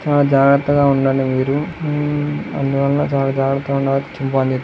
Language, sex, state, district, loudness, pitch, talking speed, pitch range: Telugu, male, Andhra Pradesh, Guntur, -17 LUFS, 140 Hz, 140 wpm, 135-145 Hz